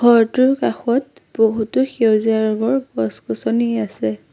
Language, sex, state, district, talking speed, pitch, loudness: Assamese, female, Assam, Sonitpur, 95 wpm, 220 Hz, -18 LUFS